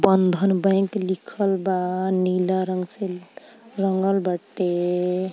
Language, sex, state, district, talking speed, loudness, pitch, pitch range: Bhojpuri, female, Uttar Pradesh, Ghazipur, 100 wpm, -23 LUFS, 190 Hz, 180-195 Hz